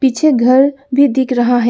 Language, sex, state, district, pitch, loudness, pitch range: Hindi, female, Arunachal Pradesh, Lower Dibang Valley, 260 Hz, -12 LUFS, 245-275 Hz